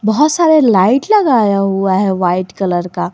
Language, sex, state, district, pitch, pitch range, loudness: Hindi, female, Jharkhand, Garhwa, 200 Hz, 185-265 Hz, -12 LUFS